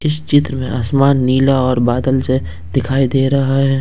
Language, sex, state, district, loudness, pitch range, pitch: Hindi, male, Jharkhand, Ranchi, -15 LUFS, 130-135 Hz, 135 Hz